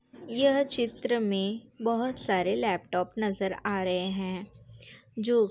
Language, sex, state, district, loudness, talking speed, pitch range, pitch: Hindi, female, Uttar Pradesh, Jalaun, -29 LUFS, 130 wpm, 185-235 Hz, 205 Hz